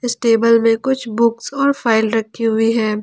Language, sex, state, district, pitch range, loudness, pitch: Hindi, female, Jharkhand, Ranchi, 225-240 Hz, -16 LUFS, 230 Hz